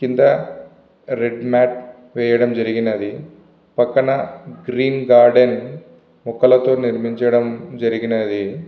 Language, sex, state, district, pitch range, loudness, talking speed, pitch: Telugu, male, Andhra Pradesh, Visakhapatnam, 115-125 Hz, -17 LUFS, 75 wpm, 120 Hz